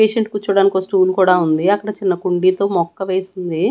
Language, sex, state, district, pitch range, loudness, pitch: Telugu, female, Andhra Pradesh, Annamaya, 180-200 Hz, -16 LUFS, 190 Hz